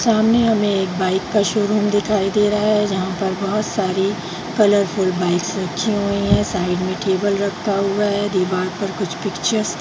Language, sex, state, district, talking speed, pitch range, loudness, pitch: Hindi, female, Bihar, Jahanabad, 185 wpm, 185-210 Hz, -19 LUFS, 200 Hz